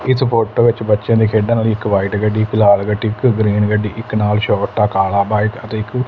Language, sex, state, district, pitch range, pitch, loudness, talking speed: Punjabi, male, Punjab, Fazilka, 105-115 Hz, 110 Hz, -15 LUFS, 245 wpm